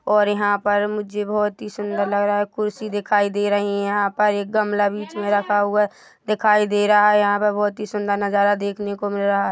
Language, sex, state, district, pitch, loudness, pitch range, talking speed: Hindi, female, Chhattisgarh, Rajnandgaon, 205 Hz, -20 LUFS, 205-210 Hz, 235 wpm